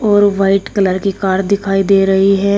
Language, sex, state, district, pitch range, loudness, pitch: Hindi, female, Uttar Pradesh, Shamli, 195-200 Hz, -13 LUFS, 195 Hz